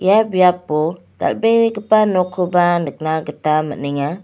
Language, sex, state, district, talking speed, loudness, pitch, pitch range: Garo, female, Meghalaya, West Garo Hills, 100 wpm, -17 LUFS, 180 Hz, 155-195 Hz